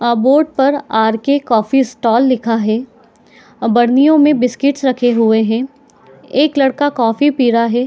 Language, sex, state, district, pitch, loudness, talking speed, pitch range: Hindi, female, Chhattisgarh, Bilaspur, 250 Hz, -13 LUFS, 170 wpm, 230-280 Hz